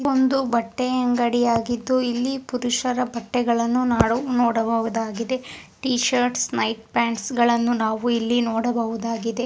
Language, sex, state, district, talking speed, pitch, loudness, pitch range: Kannada, female, Karnataka, Dharwad, 115 wpm, 240 Hz, -22 LUFS, 230-250 Hz